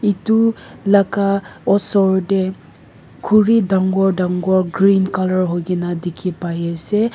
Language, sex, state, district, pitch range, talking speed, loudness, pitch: Nagamese, female, Nagaland, Kohima, 180-200 Hz, 115 wpm, -17 LUFS, 190 Hz